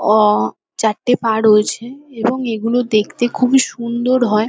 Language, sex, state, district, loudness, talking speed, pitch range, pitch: Bengali, female, West Bengal, Kolkata, -16 LUFS, 135 wpm, 215-245 Hz, 235 Hz